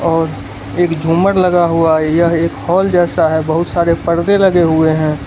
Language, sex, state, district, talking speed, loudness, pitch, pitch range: Hindi, male, Gujarat, Valsad, 195 wpm, -13 LUFS, 170 Hz, 160-175 Hz